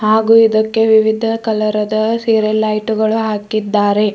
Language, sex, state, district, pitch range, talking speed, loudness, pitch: Kannada, female, Karnataka, Bidar, 215-225 Hz, 130 wpm, -14 LUFS, 220 Hz